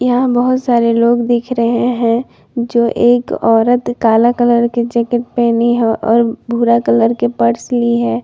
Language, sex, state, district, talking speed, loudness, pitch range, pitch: Hindi, female, Jharkhand, Palamu, 165 wpm, -13 LUFS, 225-240 Hz, 235 Hz